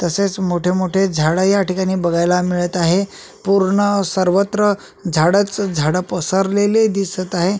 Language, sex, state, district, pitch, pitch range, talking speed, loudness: Marathi, male, Maharashtra, Solapur, 185 Hz, 175-200 Hz, 125 wpm, -17 LUFS